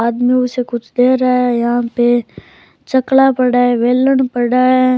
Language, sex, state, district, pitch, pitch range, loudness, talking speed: Rajasthani, male, Rajasthan, Churu, 250 Hz, 240-255 Hz, -13 LUFS, 170 wpm